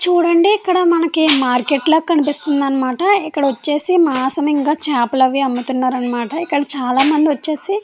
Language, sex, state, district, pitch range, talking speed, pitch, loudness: Telugu, female, Andhra Pradesh, Anantapur, 265-335 Hz, 120 wpm, 295 Hz, -15 LUFS